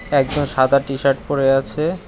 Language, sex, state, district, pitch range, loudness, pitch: Bengali, male, West Bengal, Cooch Behar, 135-150 Hz, -18 LUFS, 140 Hz